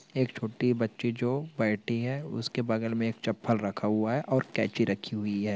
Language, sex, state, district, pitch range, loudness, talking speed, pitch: Hindi, male, Andhra Pradesh, Anantapur, 110-125 Hz, -30 LUFS, 195 wpm, 115 Hz